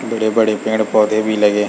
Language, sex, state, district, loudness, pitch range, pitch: Hindi, male, Chhattisgarh, Sarguja, -16 LUFS, 105-110 Hz, 110 Hz